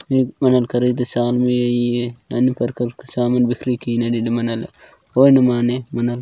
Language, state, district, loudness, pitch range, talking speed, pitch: Gondi, Chhattisgarh, Sukma, -18 LUFS, 120-125 Hz, 165 wpm, 120 Hz